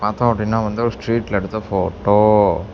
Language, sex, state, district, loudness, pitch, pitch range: Tamil, male, Tamil Nadu, Namakkal, -18 LUFS, 105 Hz, 100-115 Hz